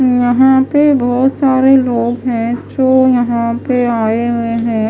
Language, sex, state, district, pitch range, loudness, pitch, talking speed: Hindi, female, Chhattisgarh, Raipur, 235-260 Hz, -12 LUFS, 245 Hz, 145 wpm